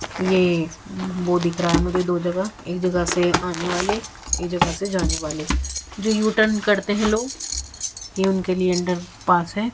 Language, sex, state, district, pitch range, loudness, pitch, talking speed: Hindi, female, Haryana, Jhajjar, 175-200 Hz, -22 LUFS, 180 Hz, 185 wpm